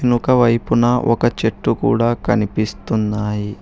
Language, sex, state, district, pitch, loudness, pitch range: Telugu, male, Telangana, Hyderabad, 115 Hz, -17 LUFS, 105-120 Hz